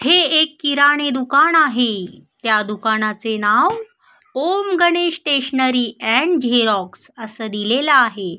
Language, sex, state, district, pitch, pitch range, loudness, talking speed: Marathi, female, Maharashtra, Sindhudurg, 260 Hz, 220-310 Hz, -16 LUFS, 115 wpm